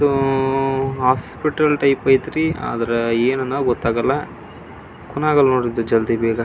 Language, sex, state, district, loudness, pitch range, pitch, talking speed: Kannada, male, Karnataka, Belgaum, -18 LUFS, 115-140 Hz, 135 Hz, 85 wpm